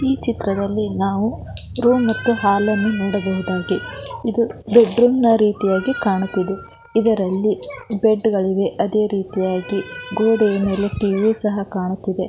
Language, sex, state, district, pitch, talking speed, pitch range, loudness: Kannada, female, Karnataka, Belgaum, 210 Hz, 120 wpm, 195-225 Hz, -19 LUFS